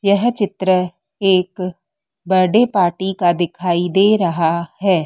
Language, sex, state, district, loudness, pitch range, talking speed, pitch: Hindi, female, Madhya Pradesh, Dhar, -17 LUFS, 175-195 Hz, 120 wpm, 185 Hz